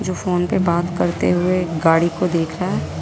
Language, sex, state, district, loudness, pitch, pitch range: Hindi, female, Delhi, New Delhi, -19 LUFS, 170 Hz, 160-180 Hz